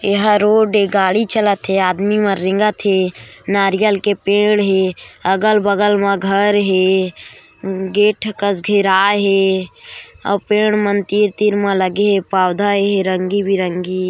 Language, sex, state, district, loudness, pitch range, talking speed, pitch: Chhattisgarhi, female, Chhattisgarh, Korba, -15 LUFS, 190-205 Hz, 135 wpm, 200 Hz